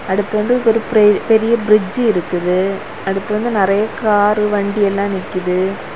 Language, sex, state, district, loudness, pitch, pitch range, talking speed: Tamil, female, Tamil Nadu, Kanyakumari, -15 LUFS, 205 Hz, 195-220 Hz, 140 wpm